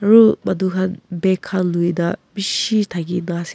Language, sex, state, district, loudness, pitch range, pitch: Nagamese, female, Nagaland, Kohima, -19 LUFS, 175-200 Hz, 185 Hz